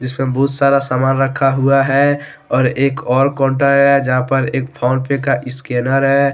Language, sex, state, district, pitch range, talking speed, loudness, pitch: Hindi, male, Jharkhand, Deoghar, 130-140 Hz, 190 wpm, -15 LUFS, 135 Hz